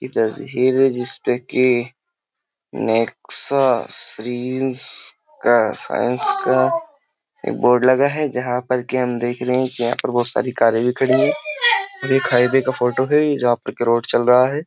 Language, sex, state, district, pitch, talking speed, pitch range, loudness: Hindi, male, Uttar Pradesh, Jyotiba Phule Nagar, 130 Hz, 170 wpm, 125-140 Hz, -17 LUFS